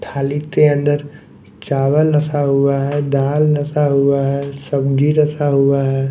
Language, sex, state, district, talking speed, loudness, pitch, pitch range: Hindi, male, Odisha, Nuapada, 145 wpm, -16 LUFS, 140 Hz, 140-145 Hz